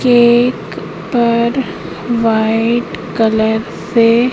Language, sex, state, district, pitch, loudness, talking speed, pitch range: Hindi, female, Madhya Pradesh, Katni, 235 Hz, -14 LUFS, 70 wpm, 225-240 Hz